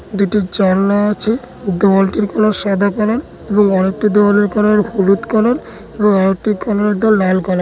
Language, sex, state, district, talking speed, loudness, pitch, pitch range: Bengali, male, West Bengal, Dakshin Dinajpur, 155 wpm, -14 LUFS, 205 Hz, 195-215 Hz